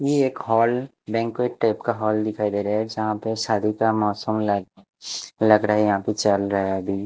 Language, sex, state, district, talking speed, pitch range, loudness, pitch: Hindi, male, Bihar, West Champaran, 220 wpm, 105-115 Hz, -22 LUFS, 110 Hz